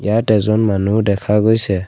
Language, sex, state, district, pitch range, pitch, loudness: Assamese, male, Assam, Kamrup Metropolitan, 100-110 Hz, 105 Hz, -15 LUFS